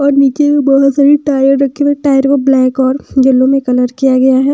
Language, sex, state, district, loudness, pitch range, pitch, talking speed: Hindi, female, Bihar, West Champaran, -10 LUFS, 265-280 Hz, 275 Hz, 240 wpm